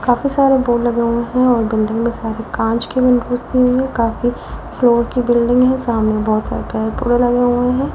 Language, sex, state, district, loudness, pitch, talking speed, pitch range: Hindi, female, Delhi, New Delhi, -16 LUFS, 240 Hz, 220 wpm, 230-250 Hz